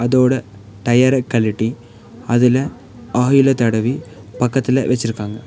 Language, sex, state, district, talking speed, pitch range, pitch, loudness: Tamil, male, Tamil Nadu, Nilgiris, 90 wpm, 115-130 Hz, 120 Hz, -17 LUFS